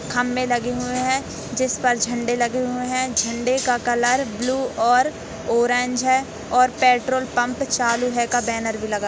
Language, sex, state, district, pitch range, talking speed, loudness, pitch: Hindi, female, Maharashtra, Nagpur, 240-255 Hz, 170 wpm, -21 LUFS, 245 Hz